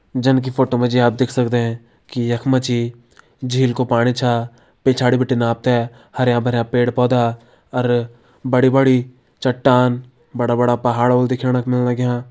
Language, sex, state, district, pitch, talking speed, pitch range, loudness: Hindi, male, Uttarakhand, Tehri Garhwal, 125 Hz, 170 wpm, 120-125 Hz, -18 LUFS